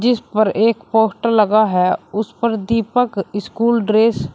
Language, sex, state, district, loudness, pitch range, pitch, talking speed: Hindi, male, Uttar Pradesh, Shamli, -17 LUFS, 215-230 Hz, 220 Hz, 165 wpm